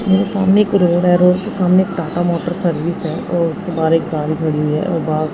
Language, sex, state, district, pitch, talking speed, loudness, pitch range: Hindi, male, Punjab, Fazilka, 175 Hz, 260 wpm, -16 LUFS, 160-185 Hz